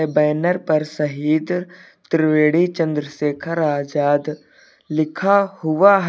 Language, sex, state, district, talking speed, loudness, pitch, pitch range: Hindi, male, Uttar Pradesh, Lucknow, 90 wpm, -19 LUFS, 155 Hz, 150-175 Hz